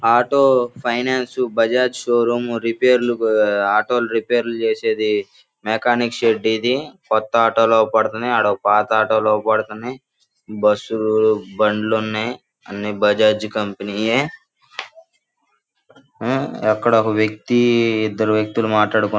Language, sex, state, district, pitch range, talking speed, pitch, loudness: Telugu, male, Andhra Pradesh, Guntur, 110-120 Hz, 105 wpm, 115 Hz, -18 LUFS